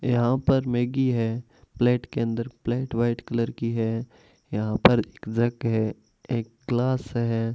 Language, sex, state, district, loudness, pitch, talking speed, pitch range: Hindi, male, Rajasthan, Bikaner, -25 LUFS, 120 Hz, 160 wpm, 115-120 Hz